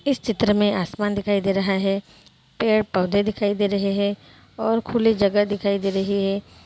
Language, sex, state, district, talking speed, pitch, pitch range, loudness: Hindi, female, Andhra Pradesh, Anantapur, 200 wpm, 205 Hz, 195-210 Hz, -22 LUFS